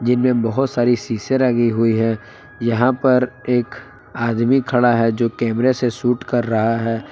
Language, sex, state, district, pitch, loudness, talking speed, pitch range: Hindi, male, Jharkhand, Palamu, 120 Hz, -18 LUFS, 170 wpm, 115-125 Hz